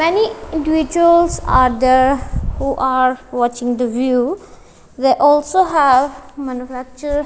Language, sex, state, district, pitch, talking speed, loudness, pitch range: English, female, Punjab, Kapurthala, 265 Hz, 115 wpm, -15 LUFS, 255-315 Hz